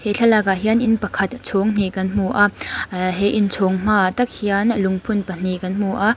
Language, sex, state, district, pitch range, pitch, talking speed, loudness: Mizo, female, Mizoram, Aizawl, 190-215 Hz, 200 Hz, 195 wpm, -19 LUFS